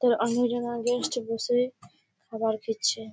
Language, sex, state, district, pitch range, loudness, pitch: Bengali, female, West Bengal, Malda, 225-245 Hz, -28 LUFS, 235 Hz